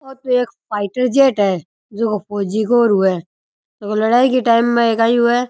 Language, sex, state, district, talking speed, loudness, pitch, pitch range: Rajasthani, male, Rajasthan, Churu, 205 wpm, -16 LUFS, 230 Hz, 205-245 Hz